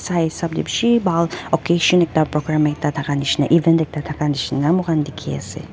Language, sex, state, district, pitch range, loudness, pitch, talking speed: Nagamese, female, Nagaland, Dimapur, 150-170 Hz, -19 LUFS, 160 Hz, 155 wpm